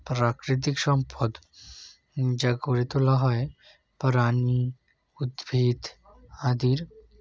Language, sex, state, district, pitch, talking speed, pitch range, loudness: Bengali, male, West Bengal, Jalpaiguri, 125 Hz, 75 wpm, 125-135 Hz, -26 LUFS